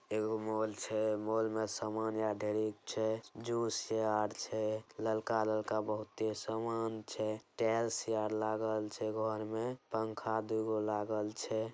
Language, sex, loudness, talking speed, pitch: Angika, male, -37 LUFS, 155 wpm, 110 Hz